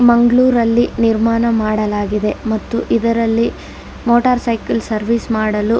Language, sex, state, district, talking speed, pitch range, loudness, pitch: Kannada, female, Karnataka, Dakshina Kannada, 115 wpm, 220-235 Hz, -15 LUFS, 230 Hz